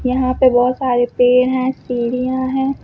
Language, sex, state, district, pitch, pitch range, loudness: Hindi, female, Uttar Pradesh, Lucknow, 255 Hz, 245-260 Hz, -16 LUFS